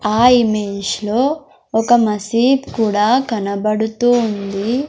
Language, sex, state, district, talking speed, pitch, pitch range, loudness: Telugu, male, Andhra Pradesh, Sri Satya Sai, 100 wpm, 225 Hz, 210-245 Hz, -16 LUFS